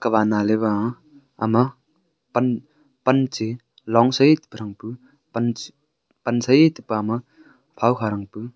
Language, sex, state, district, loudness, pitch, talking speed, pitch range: Wancho, male, Arunachal Pradesh, Longding, -21 LUFS, 120 Hz, 100 wpm, 110-140 Hz